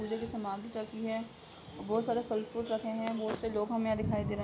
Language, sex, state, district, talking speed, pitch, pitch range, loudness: Hindi, female, Uttar Pradesh, Hamirpur, 285 wpm, 225 Hz, 220-225 Hz, -35 LUFS